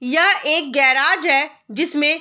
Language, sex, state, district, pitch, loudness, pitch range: Hindi, female, Bihar, Saharsa, 295 Hz, -16 LUFS, 280-330 Hz